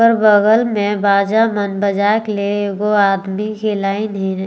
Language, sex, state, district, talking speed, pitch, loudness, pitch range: Sadri, female, Chhattisgarh, Jashpur, 160 wpm, 205 Hz, -15 LUFS, 200-215 Hz